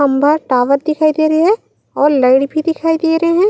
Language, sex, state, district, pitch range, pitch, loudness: Chhattisgarhi, female, Chhattisgarh, Raigarh, 280-325 Hz, 310 Hz, -13 LUFS